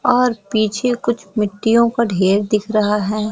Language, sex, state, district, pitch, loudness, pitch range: Hindi, female, Chhattisgarh, Bilaspur, 215 Hz, -17 LUFS, 210-235 Hz